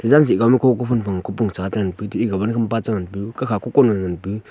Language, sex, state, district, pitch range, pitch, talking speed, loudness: Wancho, male, Arunachal Pradesh, Longding, 100-120 Hz, 110 Hz, 280 wpm, -19 LUFS